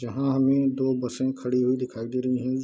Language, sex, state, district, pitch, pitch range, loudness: Hindi, male, Bihar, Darbhanga, 130 Hz, 125-130 Hz, -25 LUFS